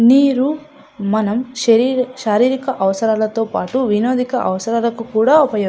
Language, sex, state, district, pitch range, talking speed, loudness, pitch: Telugu, female, Andhra Pradesh, Anantapur, 220-260 Hz, 115 wpm, -16 LUFS, 235 Hz